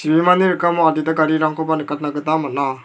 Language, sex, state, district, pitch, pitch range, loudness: Garo, male, Meghalaya, South Garo Hills, 155 Hz, 150-160 Hz, -17 LUFS